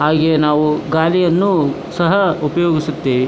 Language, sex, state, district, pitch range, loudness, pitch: Kannada, male, Karnataka, Dharwad, 150-175 Hz, -15 LUFS, 160 Hz